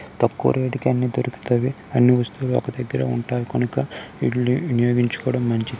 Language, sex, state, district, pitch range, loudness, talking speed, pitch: Telugu, male, Karnataka, Gulbarga, 120-125 Hz, -22 LUFS, 145 wpm, 125 Hz